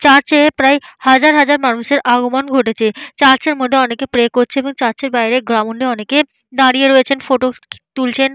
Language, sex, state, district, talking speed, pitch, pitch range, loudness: Bengali, female, West Bengal, Dakshin Dinajpur, 200 wpm, 265 Hz, 245-275 Hz, -13 LUFS